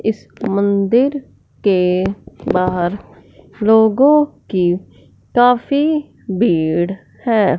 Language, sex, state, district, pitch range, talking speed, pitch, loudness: Hindi, female, Punjab, Fazilka, 185-245 Hz, 70 wpm, 205 Hz, -16 LUFS